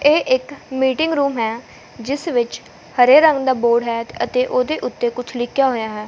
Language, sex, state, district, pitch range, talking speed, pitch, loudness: Punjabi, female, Punjab, Fazilka, 235-285 Hz, 185 wpm, 255 Hz, -18 LUFS